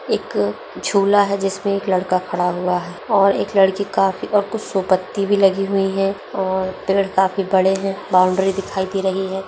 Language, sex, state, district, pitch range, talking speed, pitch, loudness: Hindi, female, Bihar, Begusarai, 190-195 Hz, 150 wpm, 195 Hz, -18 LUFS